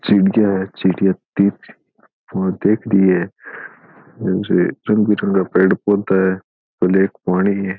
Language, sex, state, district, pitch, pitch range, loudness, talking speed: Rajasthani, male, Rajasthan, Churu, 95 Hz, 95-100 Hz, -17 LUFS, 115 wpm